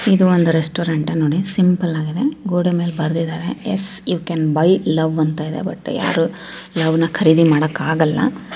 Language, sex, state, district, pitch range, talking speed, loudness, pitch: Kannada, female, Karnataka, Bellary, 160-180 Hz, 155 wpm, -18 LUFS, 165 Hz